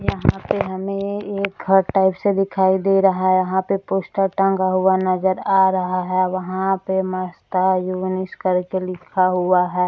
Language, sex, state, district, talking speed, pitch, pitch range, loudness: Hindi, female, Maharashtra, Nagpur, 165 wpm, 190 Hz, 185-195 Hz, -19 LUFS